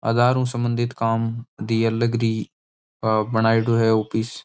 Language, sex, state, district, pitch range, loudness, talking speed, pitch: Marwari, male, Rajasthan, Nagaur, 110-120 Hz, -21 LUFS, 135 wpm, 115 Hz